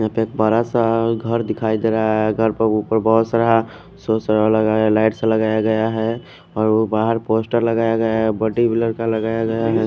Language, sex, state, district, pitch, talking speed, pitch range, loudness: Hindi, male, Odisha, Khordha, 110 Hz, 215 wpm, 110-115 Hz, -18 LUFS